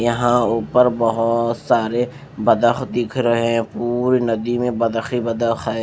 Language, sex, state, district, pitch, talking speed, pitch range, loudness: Hindi, male, Maharashtra, Mumbai Suburban, 120 Hz, 155 wpm, 115-120 Hz, -19 LUFS